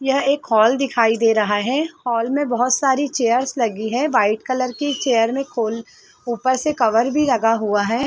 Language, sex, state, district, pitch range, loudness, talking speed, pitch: Hindi, female, Bihar, Sitamarhi, 225-275 Hz, -19 LUFS, 200 wpm, 245 Hz